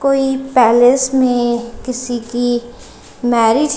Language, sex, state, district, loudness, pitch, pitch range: Hindi, female, Punjab, Kapurthala, -15 LUFS, 245 Hz, 240-265 Hz